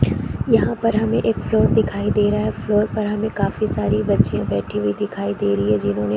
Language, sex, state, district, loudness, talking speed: Hindi, female, Chhattisgarh, Korba, -20 LUFS, 225 wpm